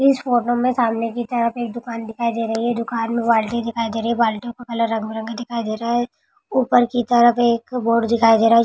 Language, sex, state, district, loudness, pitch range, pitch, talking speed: Hindi, female, Maharashtra, Dhule, -20 LUFS, 230-240 Hz, 235 Hz, 250 wpm